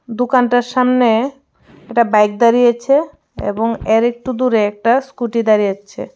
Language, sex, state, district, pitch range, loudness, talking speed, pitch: Bengali, female, Tripura, West Tripura, 225-255 Hz, -15 LUFS, 135 wpm, 235 Hz